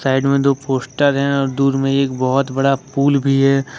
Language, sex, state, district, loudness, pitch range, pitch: Hindi, male, Jharkhand, Ranchi, -16 LUFS, 135-140 Hz, 135 Hz